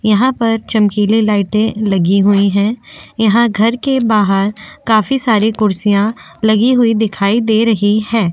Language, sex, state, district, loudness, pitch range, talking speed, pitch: Hindi, female, Chhattisgarh, Korba, -13 LUFS, 205-225 Hz, 145 wpm, 215 Hz